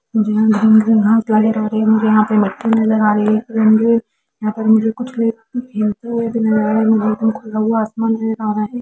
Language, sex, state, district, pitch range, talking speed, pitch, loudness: Hindi, female, Jharkhand, Jamtara, 215-225 Hz, 165 wpm, 220 Hz, -15 LUFS